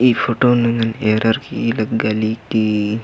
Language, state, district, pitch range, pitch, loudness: Kurukh, Chhattisgarh, Jashpur, 110-115 Hz, 115 Hz, -17 LUFS